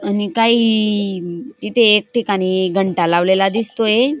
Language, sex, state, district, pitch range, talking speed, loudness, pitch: Marathi, female, Maharashtra, Dhule, 190-225 Hz, 130 wpm, -15 LUFS, 210 Hz